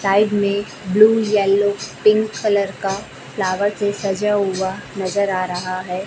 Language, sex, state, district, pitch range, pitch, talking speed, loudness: Hindi, female, Chhattisgarh, Raipur, 190-205 Hz, 200 Hz, 150 wpm, -19 LUFS